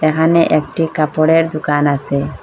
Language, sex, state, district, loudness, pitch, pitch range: Bengali, female, Assam, Hailakandi, -15 LUFS, 155 Hz, 145-160 Hz